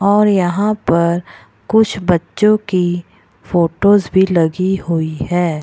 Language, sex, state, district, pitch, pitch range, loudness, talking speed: Hindi, female, Bihar, Purnia, 185 Hz, 170-205 Hz, -15 LUFS, 115 wpm